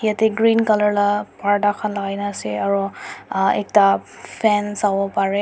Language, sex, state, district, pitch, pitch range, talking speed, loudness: Nagamese, female, Nagaland, Dimapur, 205 Hz, 195-210 Hz, 155 wpm, -19 LUFS